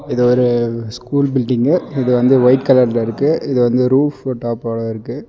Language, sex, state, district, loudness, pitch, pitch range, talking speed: Tamil, male, Tamil Nadu, Nilgiris, -15 LUFS, 125 Hz, 120-130 Hz, 160 wpm